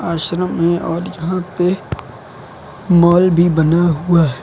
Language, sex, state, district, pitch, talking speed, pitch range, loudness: Hindi, male, Uttar Pradesh, Lucknow, 175 Hz, 135 wpm, 170-180 Hz, -15 LUFS